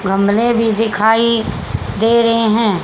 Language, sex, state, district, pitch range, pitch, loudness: Hindi, female, Haryana, Charkhi Dadri, 210-230 Hz, 225 Hz, -14 LUFS